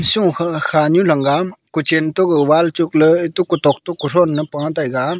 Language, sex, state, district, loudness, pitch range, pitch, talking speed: Wancho, male, Arunachal Pradesh, Longding, -16 LUFS, 155-175 Hz, 160 Hz, 185 wpm